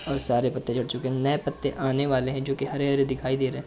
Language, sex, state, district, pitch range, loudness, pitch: Hindi, male, Uttar Pradesh, Jalaun, 130-140 Hz, -26 LUFS, 135 Hz